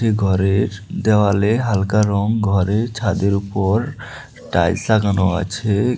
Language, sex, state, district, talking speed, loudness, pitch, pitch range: Bengali, male, Tripura, West Tripura, 100 wpm, -18 LUFS, 105 Hz, 100-110 Hz